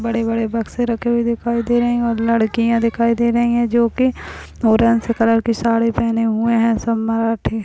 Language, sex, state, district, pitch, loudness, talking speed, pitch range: Hindi, female, Chhattisgarh, Bastar, 230 Hz, -17 LUFS, 190 wpm, 230-235 Hz